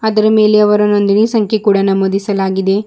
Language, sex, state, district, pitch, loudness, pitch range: Kannada, female, Karnataka, Bidar, 210 Hz, -12 LUFS, 195-215 Hz